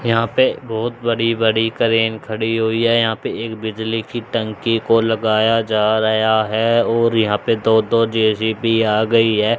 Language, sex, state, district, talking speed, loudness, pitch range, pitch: Hindi, male, Haryana, Charkhi Dadri, 180 wpm, -17 LUFS, 110-115 Hz, 115 Hz